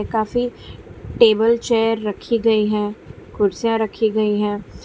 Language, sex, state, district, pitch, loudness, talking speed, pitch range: Hindi, female, Gujarat, Valsad, 215 Hz, -19 LUFS, 125 wpm, 205-225 Hz